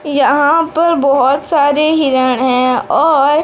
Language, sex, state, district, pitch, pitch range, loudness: Hindi, female, Odisha, Sambalpur, 285 Hz, 265-310 Hz, -12 LUFS